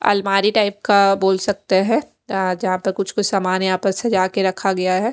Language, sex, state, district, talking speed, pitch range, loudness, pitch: Hindi, female, Odisha, Khordha, 210 wpm, 190-205 Hz, -18 LUFS, 195 Hz